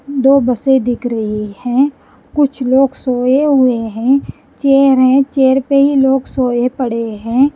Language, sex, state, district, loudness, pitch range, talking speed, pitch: Hindi, female, Punjab, Kapurthala, -13 LUFS, 245-275 Hz, 150 wpm, 265 Hz